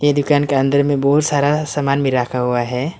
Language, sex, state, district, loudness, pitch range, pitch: Hindi, male, Arunachal Pradesh, Lower Dibang Valley, -17 LUFS, 135-145 Hz, 140 Hz